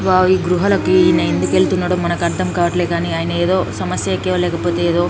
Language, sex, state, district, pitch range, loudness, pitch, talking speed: Telugu, female, Telangana, Nalgonda, 170-180 Hz, -16 LUFS, 175 Hz, 165 wpm